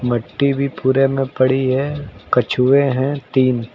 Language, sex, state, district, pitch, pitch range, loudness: Hindi, male, Uttar Pradesh, Lucknow, 130 Hz, 125-140 Hz, -17 LUFS